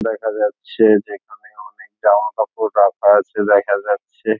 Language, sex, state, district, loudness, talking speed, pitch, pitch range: Bengali, male, West Bengal, Dakshin Dinajpur, -16 LUFS, 165 wpm, 105 Hz, 100-110 Hz